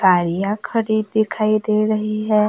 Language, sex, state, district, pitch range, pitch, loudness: Hindi, female, Maharashtra, Gondia, 210-215 Hz, 215 Hz, -19 LUFS